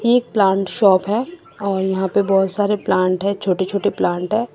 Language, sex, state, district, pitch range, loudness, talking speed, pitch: Hindi, female, Assam, Sonitpur, 190-210 Hz, -18 LUFS, 210 wpm, 200 Hz